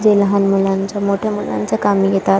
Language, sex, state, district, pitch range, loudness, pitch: Marathi, female, Maharashtra, Chandrapur, 195-200 Hz, -16 LUFS, 195 Hz